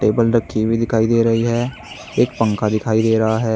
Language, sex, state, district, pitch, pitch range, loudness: Hindi, male, Uttar Pradesh, Saharanpur, 115 Hz, 110-115 Hz, -17 LUFS